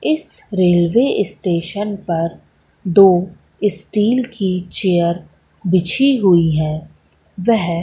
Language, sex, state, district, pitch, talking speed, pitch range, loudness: Hindi, female, Madhya Pradesh, Katni, 185 Hz, 90 wpm, 170-205 Hz, -16 LUFS